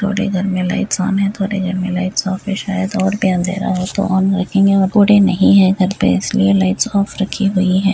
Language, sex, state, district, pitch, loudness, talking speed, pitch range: Hindi, female, Uttar Pradesh, Deoria, 195 Hz, -15 LUFS, 225 wpm, 185-200 Hz